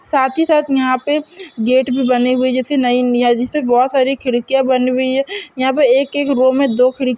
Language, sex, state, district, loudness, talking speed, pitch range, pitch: Hindi, female, Chhattisgarh, Bastar, -15 LUFS, 235 wpm, 255-275 Hz, 260 Hz